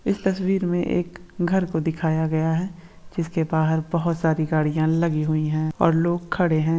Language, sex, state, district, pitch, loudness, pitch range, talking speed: Hindi, male, Andhra Pradesh, Krishna, 165 Hz, -23 LUFS, 160-175 Hz, 185 wpm